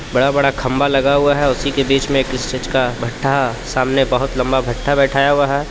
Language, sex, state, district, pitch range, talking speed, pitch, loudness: Hindi, male, Jharkhand, Palamu, 130-140 Hz, 210 wpm, 135 Hz, -16 LUFS